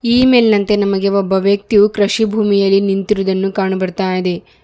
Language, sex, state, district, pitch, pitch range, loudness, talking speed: Kannada, male, Karnataka, Bidar, 200 Hz, 195-210 Hz, -14 LUFS, 140 wpm